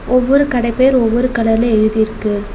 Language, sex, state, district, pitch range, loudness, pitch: Tamil, female, Tamil Nadu, Nilgiris, 220-255 Hz, -14 LUFS, 235 Hz